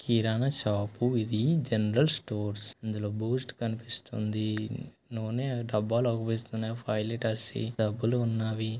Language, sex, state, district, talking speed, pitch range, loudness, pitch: Telugu, male, Telangana, Nalgonda, 110 wpm, 110-120 Hz, -31 LUFS, 115 Hz